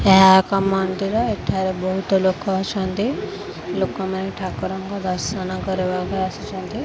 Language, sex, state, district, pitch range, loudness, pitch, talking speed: Odia, female, Odisha, Khordha, 185-195 Hz, -21 LUFS, 190 Hz, 105 wpm